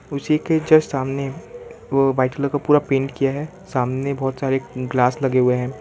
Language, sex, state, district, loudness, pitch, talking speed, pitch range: Hindi, male, Gujarat, Valsad, -20 LUFS, 135 Hz, 195 wpm, 130-150 Hz